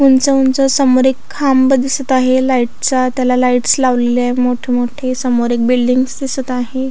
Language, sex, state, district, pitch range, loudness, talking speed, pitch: Marathi, female, Maharashtra, Aurangabad, 250-265 Hz, -13 LUFS, 165 wpm, 255 Hz